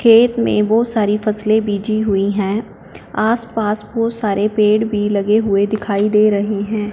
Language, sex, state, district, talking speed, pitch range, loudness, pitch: Hindi, female, Punjab, Fazilka, 165 wpm, 205-220 Hz, -16 LUFS, 210 Hz